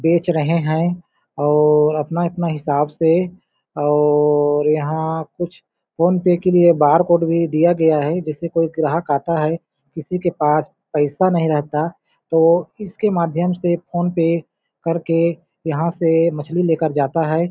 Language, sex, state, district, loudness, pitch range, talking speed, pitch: Hindi, male, Chhattisgarh, Balrampur, -18 LUFS, 150-170 Hz, 145 wpm, 165 Hz